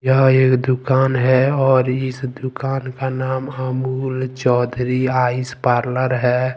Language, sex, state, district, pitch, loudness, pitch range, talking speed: Hindi, male, Jharkhand, Ranchi, 130 Hz, -18 LUFS, 125-130 Hz, 130 wpm